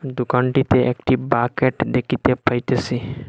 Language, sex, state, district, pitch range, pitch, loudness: Bengali, male, Assam, Hailakandi, 125-130 Hz, 125 Hz, -19 LUFS